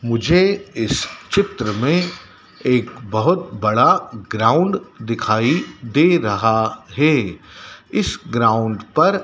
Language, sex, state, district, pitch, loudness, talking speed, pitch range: Hindi, male, Madhya Pradesh, Dhar, 125 Hz, -18 LUFS, 95 wpm, 110-175 Hz